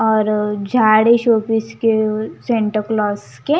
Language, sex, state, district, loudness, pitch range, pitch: Hindi, female, Punjab, Kapurthala, -16 LUFS, 215-225 Hz, 220 Hz